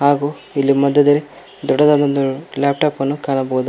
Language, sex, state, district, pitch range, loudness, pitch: Kannada, male, Karnataka, Koppal, 140-145 Hz, -16 LUFS, 140 Hz